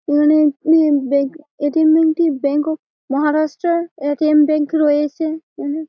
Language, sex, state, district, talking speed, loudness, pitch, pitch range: Bengali, female, West Bengal, Malda, 175 wpm, -16 LUFS, 305 Hz, 290-315 Hz